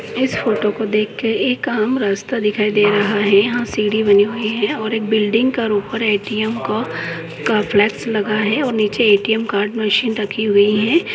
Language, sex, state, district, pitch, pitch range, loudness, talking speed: Hindi, male, West Bengal, Jalpaiguri, 215 Hz, 205-225 Hz, -17 LUFS, 190 wpm